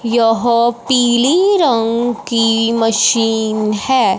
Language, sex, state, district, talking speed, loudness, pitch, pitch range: Hindi, female, Punjab, Fazilka, 85 wpm, -14 LUFS, 230 Hz, 225-245 Hz